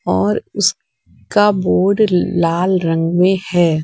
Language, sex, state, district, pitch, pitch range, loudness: Hindi, female, Bihar, West Champaran, 175 Hz, 165-190 Hz, -15 LUFS